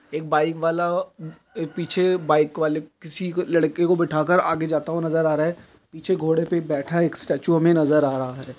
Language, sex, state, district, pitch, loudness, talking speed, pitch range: Hindi, male, Uttar Pradesh, Deoria, 160 Hz, -22 LUFS, 215 wpm, 155-175 Hz